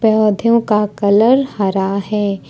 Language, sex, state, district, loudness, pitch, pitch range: Hindi, female, Jharkhand, Ranchi, -15 LUFS, 210 Hz, 200-220 Hz